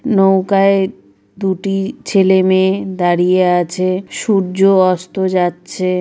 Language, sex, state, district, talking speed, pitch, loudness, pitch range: Bengali, female, West Bengal, Jalpaiguri, 80 wpm, 190 Hz, -14 LUFS, 180-195 Hz